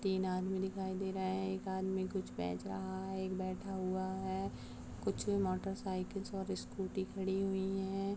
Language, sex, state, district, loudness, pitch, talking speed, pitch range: Hindi, female, Chhattisgarh, Rajnandgaon, -39 LUFS, 190 Hz, 175 wpm, 190-195 Hz